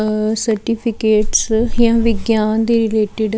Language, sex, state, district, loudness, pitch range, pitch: Punjabi, female, Chandigarh, Chandigarh, -16 LUFS, 215-230 Hz, 220 Hz